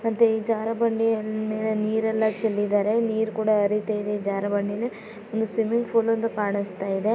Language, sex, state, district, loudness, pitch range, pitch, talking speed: Kannada, female, Karnataka, Raichur, -24 LUFS, 210-225 Hz, 220 Hz, 170 wpm